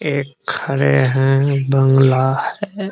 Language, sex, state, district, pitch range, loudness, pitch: Hindi, male, Bihar, Araria, 135-140 Hz, -16 LUFS, 135 Hz